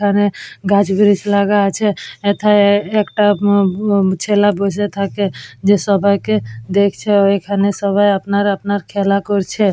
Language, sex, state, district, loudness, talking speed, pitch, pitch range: Bengali, female, West Bengal, Purulia, -15 LUFS, 130 wpm, 200 Hz, 200-205 Hz